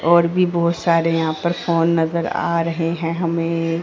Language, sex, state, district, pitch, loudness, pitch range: Hindi, female, Haryana, Rohtak, 170 Hz, -19 LUFS, 165-170 Hz